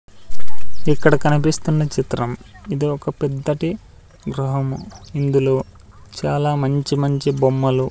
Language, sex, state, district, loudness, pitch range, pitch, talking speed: Telugu, male, Andhra Pradesh, Sri Satya Sai, -20 LUFS, 130-150 Hz, 140 Hz, 100 wpm